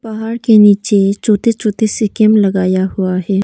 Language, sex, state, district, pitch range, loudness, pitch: Hindi, female, Arunachal Pradesh, Papum Pare, 195-220 Hz, -12 LUFS, 210 Hz